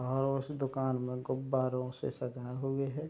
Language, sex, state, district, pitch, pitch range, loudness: Hindi, male, Bihar, Madhepura, 130 Hz, 125-135 Hz, -35 LUFS